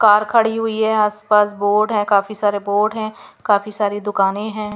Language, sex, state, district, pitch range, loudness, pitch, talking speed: Hindi, female, Punjab, Pathankot, 205-215 Hz, -17 LUFS, 210 Hz, 190 wpm